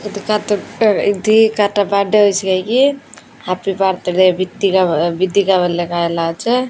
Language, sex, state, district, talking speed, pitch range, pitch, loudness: Odia, female, Odisha, Malkangiri, 180 wpm, 185-210 Hz, 200 Hz, -15 LUFS